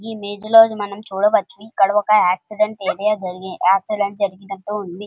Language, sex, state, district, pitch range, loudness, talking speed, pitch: Telugu, female, Andhra Pradesh, Krishna, 195-215 Hz, -18 LUFS, 165 wpm, 205 Hz